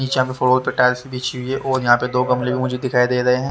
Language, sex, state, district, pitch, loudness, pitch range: Hindi, male, Haryana, Rohtak, 125 Hz, -18 LUFS, 125-130 Hz